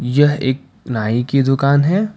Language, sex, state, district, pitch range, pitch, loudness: Hindi, male, Karnataka, Bangalore, 125-145 Hz, 135 Hz, -16 LUFS